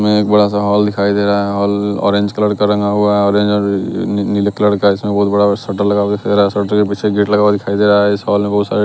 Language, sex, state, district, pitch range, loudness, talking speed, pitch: Hindi, male, Bihar, West Champaran, 100-105 Hz, -14 LUFS, 280 wpm, 100 Hz